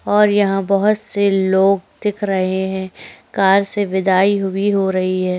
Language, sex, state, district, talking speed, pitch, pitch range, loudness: Hindi, female, Chhattisgarh, Korba, 165 wpm, 195 Hz, 190-205 Hz, -16 LUFS